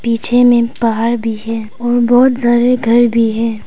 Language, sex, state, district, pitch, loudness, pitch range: Hindi, female, Arunachal Pradesh, Papum Pare, 235 Hz, -13 LUFS, 230-240 Hz